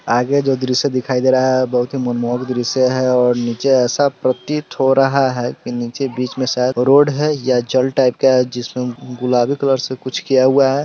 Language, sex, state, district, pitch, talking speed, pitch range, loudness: Hindi, male, Bihar, Sitamarhi, 130 Hz, 210 wpm, 125-135 Hz, -16 LUFS